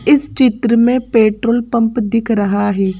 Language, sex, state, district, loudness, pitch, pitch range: Hindi, female, Madhya Pradesh, Bhopal, -14 LUFS, 230 Hz, 215-240 Hz